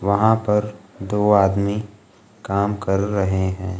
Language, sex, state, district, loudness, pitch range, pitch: Hindi, male, Bihar, Kaimur, -20 LUFS, 95-105 Hz, 100 Hz